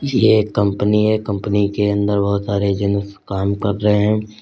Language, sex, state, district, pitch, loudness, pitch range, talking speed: Hindi, male, Uttar Pradesh, Lalitpur, 105 Hz, -17 LUFS, 100-105 Hz, 190 wpm